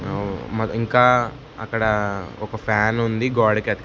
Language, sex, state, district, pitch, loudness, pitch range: Telugu, male, Andhra Pradesh, Sri Satya Sai, 110 Hz, -21 LUFS, 105-120 Hz